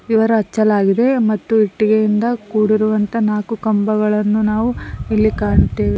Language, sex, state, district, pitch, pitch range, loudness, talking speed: Kannada, female, Karnataka, Koppal, 215 Hz, 210-220 Hz, -16 LUFS, 100 wpm